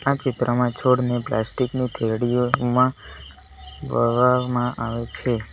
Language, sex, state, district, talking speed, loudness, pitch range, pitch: Gujarati, male, Gujarat, Valsad, 100 wpm, -22 LUFS, 115-125 Hz, 120 Hz